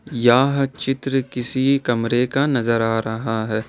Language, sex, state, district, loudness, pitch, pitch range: Hindi, male, Jharkhand, Ranchi, -20 LUFS, 125 Hz, 115-135 Hz